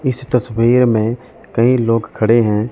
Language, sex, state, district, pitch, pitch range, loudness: Hindi, male, Chandigarh, Chandigarh, 115 Hz, 115-125 Hz, -15 LUFS